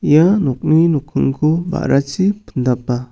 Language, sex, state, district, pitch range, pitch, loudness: Garo, male, Meghalaya, South Garo Hills, 130-170 Hz, 150 Hz, -16 LUFS